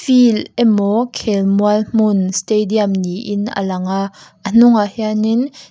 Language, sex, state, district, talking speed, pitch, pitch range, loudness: Mizo, female, Mizoram, Aizawl, 115 wpm, 210 Hz, 195-225 Hz, -15 LUFS